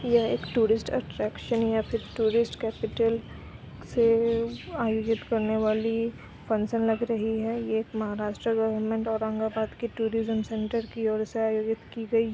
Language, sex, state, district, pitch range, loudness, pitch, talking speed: Hindi, female, Uttar Pradesh, Etah, 220-230 Hz, -28 LUFS, 225 Hz, 135 wpm